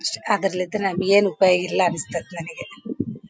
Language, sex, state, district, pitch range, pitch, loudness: Kannada, female, Karnataka, Bellary, 170-195 Hz, 185 Hz, -21 LUFS